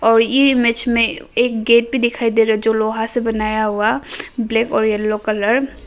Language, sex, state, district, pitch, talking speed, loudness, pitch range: Hindi, female, Arunachal Pradesh, Papum Pare, 225 Hz, 205 wpm, -16 LUFS, 220-235 Hz